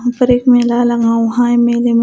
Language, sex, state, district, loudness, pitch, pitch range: Hindi, female, Maharashtra, Gondia, -12 LUFS, 240 Hz, 235-245 Hz